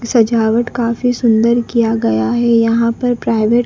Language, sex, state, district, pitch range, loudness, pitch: Hindi, female, Madhya Pradesh, Dhar, 230-240 Hz, -14 LUFS, 235 Hz